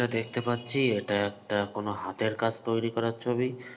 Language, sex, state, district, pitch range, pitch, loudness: Bengali, male, West Bengal, North 24 Parganas, 105-120 Hz, 115 Hz, -29 LUFS